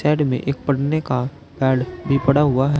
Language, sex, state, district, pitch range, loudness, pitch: Hindi, male, Uttar Pradesh, Saharanpur, 130-145 Hz, -20 LUFS, 140 Hz